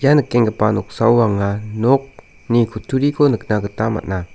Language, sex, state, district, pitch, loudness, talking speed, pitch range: Garo, male, Meghalaya, South Garo Hills, 110 Hz, -17 LUFS, 125 wpm, 105-130 Hz